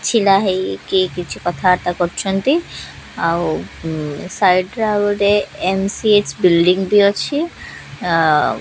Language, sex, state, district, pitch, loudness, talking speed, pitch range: Odia, female, Odisha, Khordha, 190 Hz, -17 LUFS, 120 wpm, 175-205 Hz